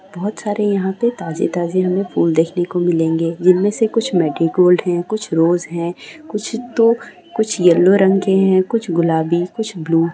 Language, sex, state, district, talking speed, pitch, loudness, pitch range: Hindi, female, Bihar, Saran, 180 wpm, 180 Hz, -16 LUFS, 170-205 Hz